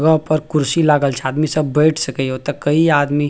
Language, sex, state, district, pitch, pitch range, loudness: Maithili, male, Bihar, Purnia, 150 Hz, 140-155 Hz, -16 LUFS